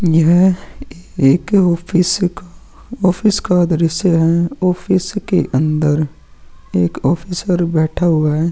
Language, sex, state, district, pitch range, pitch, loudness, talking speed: Hindi, male, Uttarakhand, Tehri Garhwal, 155-180 Hz, 170 Hz, -15 LUFS, 120 wpm